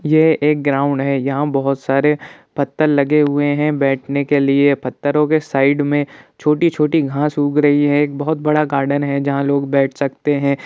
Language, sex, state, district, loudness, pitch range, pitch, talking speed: Hindi, male, Bihar, Jahanabad, -16 LUFS, 140-150 Hz, 145 Hz, 185 wpm